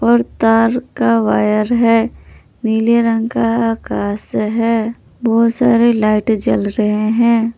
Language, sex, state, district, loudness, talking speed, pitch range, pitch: Hindi, female, Jharkhand, Palamu, -15 LUFS, 125 wpm, 215-235 Hz, 230 Hz